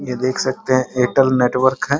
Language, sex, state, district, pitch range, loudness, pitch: Hindi, male, Bihar, Muzaffarpur, 125-130 Hz, -17 LUFS, 130 Hz